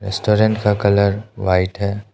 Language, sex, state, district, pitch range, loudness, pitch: Hindi, male, Arunachal Pradesh, Lower Dibang Valley, 100-105 Hz, -17 LUFS, 100 Hz